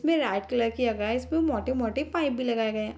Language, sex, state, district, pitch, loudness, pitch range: Hindi, female, Bihar, Darbhanga, 250 Hz, -27 LUFS, 225-295 Hz